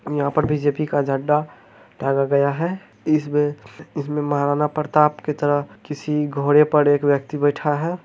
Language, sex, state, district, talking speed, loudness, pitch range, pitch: Hindi, male, Bihar, Bhagalpur, 150 wpm, -20 LUFS, 145-150 Hz, 150 Hz